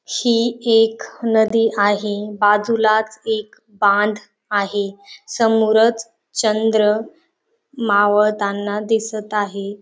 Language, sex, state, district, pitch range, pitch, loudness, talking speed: Marathi, female, Maharashtra, Dhule, 205-225 Hz, 215 Hz, -18 LUFS, 80 wpm